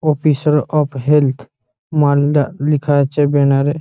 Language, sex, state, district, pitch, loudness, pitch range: Bengali, male, West Bengal, Malda, 145 Hz, -15 LUFS, 140-150 Hz